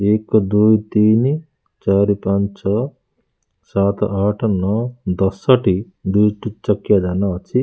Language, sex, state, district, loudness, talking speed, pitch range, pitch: Odia, male, Odisha, Khordha, -17 LUFS, 110 wpm, 100-110 Hz, 105 Hz